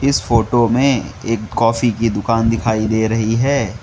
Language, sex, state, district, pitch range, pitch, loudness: Hindi, male, Mizoram, Aizawl, 110-120 Hz, 115 Hz, -16 LUFS